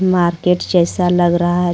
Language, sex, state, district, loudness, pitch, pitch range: Hindi, female, Jharkhand, Garhwa, -15 LUFS, 175 Hz, 175-180 Hz